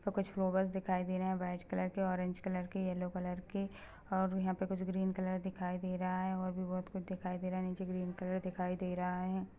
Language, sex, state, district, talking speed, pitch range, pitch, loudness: Hindi, female, Chhattisgarh, Rajnandgaon, 255 wpm, 185-190 Hz, 185 Hz, -38 LUFS